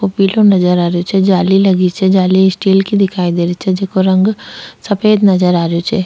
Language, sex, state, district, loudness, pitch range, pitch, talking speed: Rajasthani, female, Rajasthan, Churu, -12 LUFS, 180-195 Hz, 190 Hz, 230 wpm